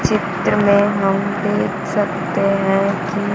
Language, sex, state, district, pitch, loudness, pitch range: Hindi, female, Bihar, Kaimur, 200 Hz, -17 LUFS, 195-205 Hz